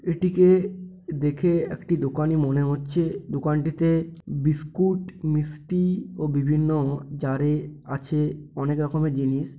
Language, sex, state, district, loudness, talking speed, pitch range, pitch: Bengali, male, West Bengal, Paschim Medinipur, -24 LUFS, 105 wpm, 145-170 Hz, 150 Hz